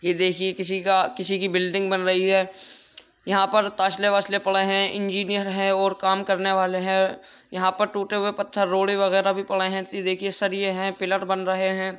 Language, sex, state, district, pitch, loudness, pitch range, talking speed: Hindi, male, Uttar Pradesh, Jyotiba Phule Nagar, 195 Hz, -22 LUFS, 190-195 Hz, 220 wpm